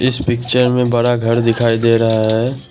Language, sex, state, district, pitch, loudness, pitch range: Hindi, male, Assam, Kamrup Metropolitan, 120 Hz, -14 LUFS, 115-125 Hz